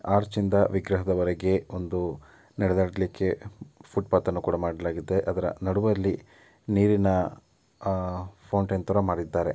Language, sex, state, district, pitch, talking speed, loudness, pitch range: Kannada, male, Karnataka, Dakshina Kannada, 95 Hz, 95 wpm, -27 LUFS, 90-100 Hz